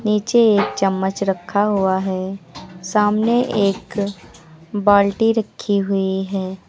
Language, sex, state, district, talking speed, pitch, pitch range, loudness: Hindi, female, Uttar Pradesh, Lucknow, 110 wpm, 200 Hz, 190-210 Hz, -18 LUFS